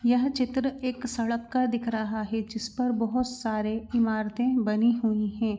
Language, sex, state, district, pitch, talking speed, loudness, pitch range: Hindi, female, Bihar, Saran, 235 Hz, 195 wpm, -28 LUFS, 220-250 Hz